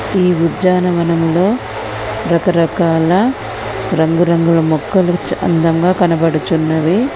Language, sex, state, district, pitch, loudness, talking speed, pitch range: Telugu, female, Telangana, Komaram Bheem, 170 Hz, -14 LUFS, 65 wpm, 165-185 Hz